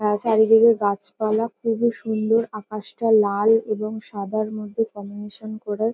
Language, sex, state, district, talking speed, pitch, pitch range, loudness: Bengali, female, West Bengal, North 24 Parganas, 130 wpm, 215 Hz, 210-225 Hz, -21 LUFS